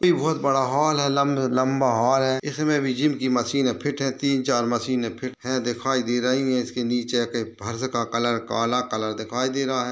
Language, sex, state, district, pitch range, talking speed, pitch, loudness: Hindi, male, Uttar Pradesh, Etah, 120-135 Hz, 225 wpm, 130 Hz, -23 LUFS